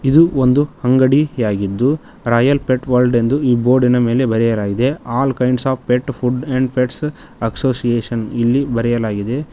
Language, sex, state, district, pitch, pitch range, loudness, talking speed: Kannada, male, Karnataka, Koppal, 125 Hz, 120-135 Hz, -16 LUFS, 140 wpm